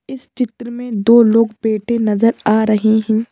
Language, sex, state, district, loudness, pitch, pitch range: Hindi, female, Madhya Pradesh, Bhopal, -15 LUFS, 225 Hz, 220-235 Hz